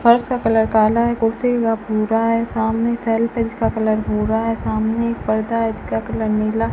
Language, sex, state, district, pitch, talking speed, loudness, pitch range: Hindi, female, Rajasthan, Bikaner, 225 Hz, 195 wpm, -19 LUFS, 220-230 Hz